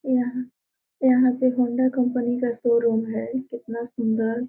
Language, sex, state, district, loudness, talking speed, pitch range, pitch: Hindi, female, Bihar, Gopalganj, -23 LUFS, 135 wpm, 235-255 Hz, 245 Hz